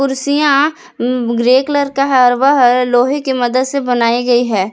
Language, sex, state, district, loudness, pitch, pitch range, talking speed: Hindi, female, Jharkhand, Palamu, -13 LUFS, 255 Hz, 245-280 Hz, 190 wpm